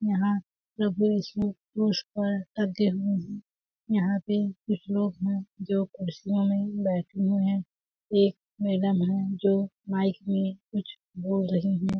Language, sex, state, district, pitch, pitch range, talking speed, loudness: Hindi, female, Chhattisgarh, Balrampur, 200 Hz, 195-205 Hz, 140 wpm, -28 LUFS